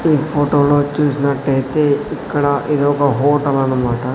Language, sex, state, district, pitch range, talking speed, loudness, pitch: Telugu, male, Andhra Pradesh, Sri Satya Sai, 140-145 Hz, 115 wpm, -16 LUFS, 145 Hz